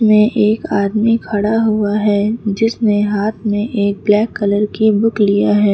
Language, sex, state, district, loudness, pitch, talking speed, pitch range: Hindi, female, Uttar Pradesh, Lucknow, -15 LUFS, 210 Hz, 165 wpm, 205-220 Hz